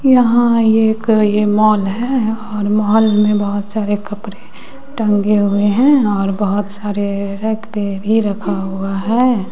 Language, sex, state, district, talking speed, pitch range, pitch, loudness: Hindi, female, Bihar, West Champaran, 145 wpm, 205-225 Hz, 210 Hz, -15 LUFS